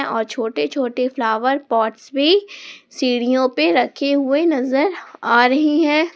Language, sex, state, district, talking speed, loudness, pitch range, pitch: Hindi, female, Jharkhand, Palamu, 135 wpm, -18 LUFS, 240-295 Hz, 265 Hz